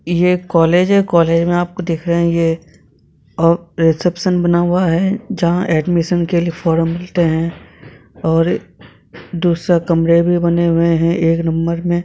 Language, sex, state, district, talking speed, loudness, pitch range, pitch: Hindi, male, Jharkhand, Sahebganj, 165 wpm, -15 LUFS, 165-175 Hz, 170 Hz